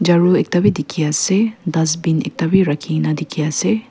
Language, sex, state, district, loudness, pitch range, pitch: Nagamese, female, Nagaland, Kohima, -17 LUFS, 155-190 Hz, 165 Hz